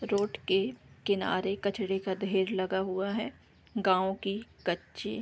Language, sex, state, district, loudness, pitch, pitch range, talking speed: Hindi, female, Bihar, Darbhanga, -32 LUFS, 195 Hz, 190-200 Hz, 150 wpm